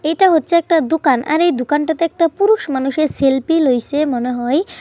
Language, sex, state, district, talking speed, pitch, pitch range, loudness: Bengali, female, West Bengal, Kolkata, 175 wpm, 310 Hz, 270-335 Hz, -15 LUFS